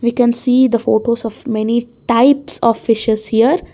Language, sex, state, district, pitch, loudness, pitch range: English, female, Karnataka, Bangalore, 235 Hz, -15 LUFS, 225-250 Hz